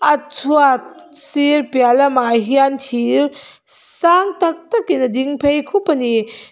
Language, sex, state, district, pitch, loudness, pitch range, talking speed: Mizo, female, Mizoram, Aizawl, 285 Hz, -15 LUFS, 260-320 Hz, 145 wpm